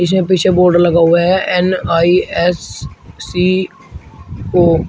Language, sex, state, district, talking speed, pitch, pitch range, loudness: Hindi, male, Uttar Pradesh, Shamli, 160 wpm, 180 Hz, 175-185 Hz, -13 LUFS